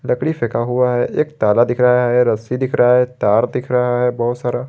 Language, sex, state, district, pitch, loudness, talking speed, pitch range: Hindi, male, Jharkhand, Garhwa, 125 Hz, -16 LUFS, 245 wpm, 120-125 Hz